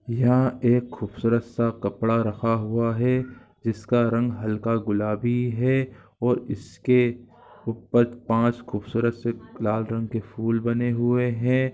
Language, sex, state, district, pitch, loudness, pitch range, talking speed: Hindi, male, Bihar, East Champaran, 115 Hz, -24 LUFS, 115-120 Hz, 135 wpm